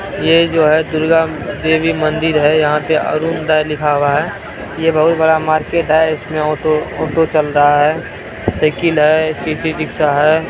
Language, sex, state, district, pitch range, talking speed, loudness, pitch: Maithili, male, Bihar, Araria, 150-160 Hz, 175 wpm, -14 LUFS, 155 Hz